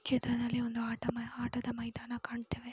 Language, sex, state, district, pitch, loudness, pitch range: Kannada, female, Karnataka, Mysore, 240 Hz, -37 LUFS, 235-245 Hz